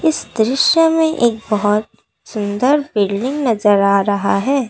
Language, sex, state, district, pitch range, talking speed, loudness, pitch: Hindi, female, Assam, Kamrup Metropolitan, 205-280 Hz, 140 wpm, -15 LUFS, 225 Hz